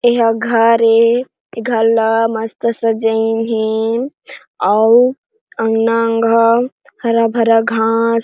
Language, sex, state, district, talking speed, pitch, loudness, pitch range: Chhattisgarhi, female, Chhattisgarh, Jashpur, 110 wpm, 230 Hz, -14 LUFS, 225-235 Hz